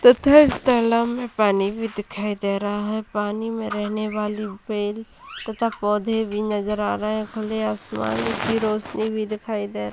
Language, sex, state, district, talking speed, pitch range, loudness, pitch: Hindi, female, Bihar, Purnia, 180 wpm, 205-220 Hz, -22 LUFS, 215 Hz